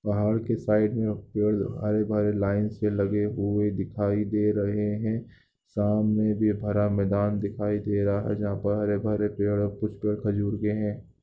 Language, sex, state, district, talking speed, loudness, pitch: Hindi, male, Bihar, Lakhisarai, 180 wpm, -27 LUFS, 105 Hz